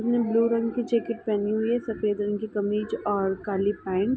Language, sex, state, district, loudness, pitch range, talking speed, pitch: Hindi, female, Uttar Pradesh, Ghazipur, -26 LUFS, 205-230 Hz, 245 wpm, 215 Hz